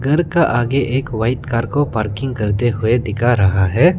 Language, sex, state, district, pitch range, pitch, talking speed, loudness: Hindi, male, Arunachal Pradesh, Lower Dibang Valley, 110-135 Hz, 120 Hz, 195 wpm, -17 LUFS